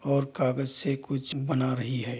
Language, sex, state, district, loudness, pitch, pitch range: Hindi, male, Bihar, Darbhanga, -29 LUFS, 135 Hz, 130-140 Hz